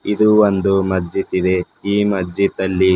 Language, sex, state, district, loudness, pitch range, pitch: Kannada, male, Karnataka, Bidar, -17 LUFS, 95-100 Hz, 95 Hz